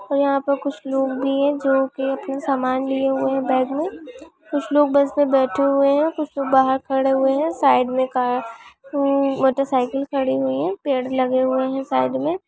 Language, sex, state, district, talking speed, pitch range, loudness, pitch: Hindi, female, Maharashtra, Aurangabad, 205 wpm, 265-280 Hz, -20 LUFS, 270 Hz